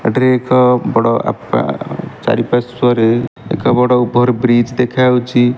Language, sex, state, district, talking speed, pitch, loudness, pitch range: Odia, male, Odisha, Malkangiri, 130 wpm, 125 Hz, -14 LUFS, 120-125 Hz